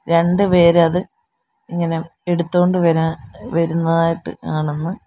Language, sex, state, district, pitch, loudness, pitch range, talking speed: Malayalam, female, Kerala, Kollam, 170 Hz, -17 LUFS, 165-180 Hz, 85 wpm